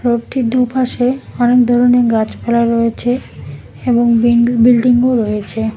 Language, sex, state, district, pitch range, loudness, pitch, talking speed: Bengali, female, West Bengal, Cooch Behar, 235-245 Hz, -13 LUFS, 240 Hz, 105 wpm